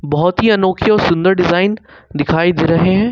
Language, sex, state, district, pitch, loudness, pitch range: Hindi, male, Jharkhand, Ranchi, 180 Hz, -13 LUFS, 165-195 Hz